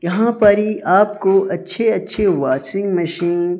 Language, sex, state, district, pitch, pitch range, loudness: Hindi, male, Odisha, Sambalpur, 195 Hz, 175-210 Hz, -16 LUFS